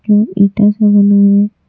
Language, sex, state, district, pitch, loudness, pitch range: Hindi, female, Jharkhand, Deoghar, 205 Hz, -10 LUFS, 200-210 Hz